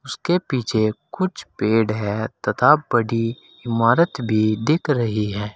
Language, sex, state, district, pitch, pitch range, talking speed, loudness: Hindi, male, Uttar Pradesh, Saharanpur, 115 Hz, 110-145 Hz, 130 wpm, -20 LUFS